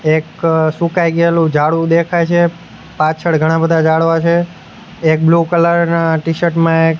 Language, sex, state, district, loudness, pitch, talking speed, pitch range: Gujarati, male, Gujarat, Gandhinagar, -13 LUFS, 165 Hz, 155 wpm, 160-170 Hz